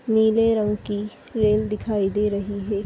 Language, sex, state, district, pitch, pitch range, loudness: Hindi, female, Maharashtra, Solapur, 210 Hz, 205-220 Hz, -22 LUFS